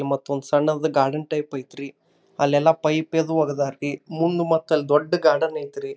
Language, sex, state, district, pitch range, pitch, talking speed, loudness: Kannada, male, Karnataka, Dharwad, 140-160 Hz, 150 Hz, 170 wpm, -22 LUFS